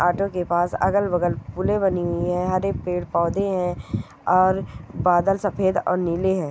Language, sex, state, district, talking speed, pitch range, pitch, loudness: Hindi, female, Goa, North and South Goa, 175 wpm, 175-190 Hz, 180 Hz, -22 LUFS